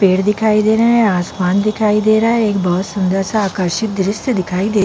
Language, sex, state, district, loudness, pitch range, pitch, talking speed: Hindi, female, Chhattisgarh, Bilaspur, -15 LUFS, 190-220 Hz, 205 Hz, 220 wpm